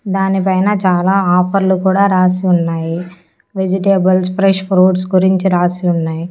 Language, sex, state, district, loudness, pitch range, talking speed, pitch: Telugu, female, Andhra Pradesh, Annamaya, -13 LUFS, 180-190 Hz, 115 wpm, 185 Hz